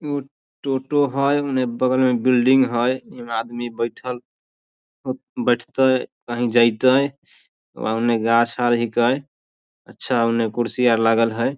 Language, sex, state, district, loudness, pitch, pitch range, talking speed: Maithili, male, Bihar, Samastipur, -20 LUFS, 120 Hz, 115-130 Hz, 130 wpm